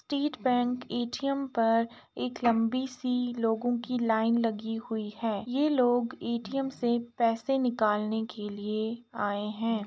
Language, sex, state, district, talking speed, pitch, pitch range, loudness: Hindi, female, Uttar Pradesh, Jalaun, 150 wpm, 235 Hz, 225-250 Hz, -30 LUFS